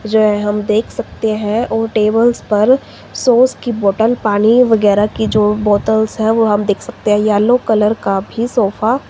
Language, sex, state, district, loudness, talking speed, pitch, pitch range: Hindi, female, Himachal Pradesh, Shimla, -14 LUFS, 190 wpm, 220 Hz, 210-230 Hz